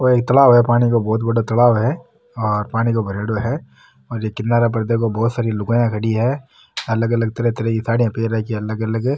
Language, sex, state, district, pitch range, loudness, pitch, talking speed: Marwari, male, Rajasthan, Nagaur, 110-120 Hz, -18 LUFS, 115 Hz, 215 wpm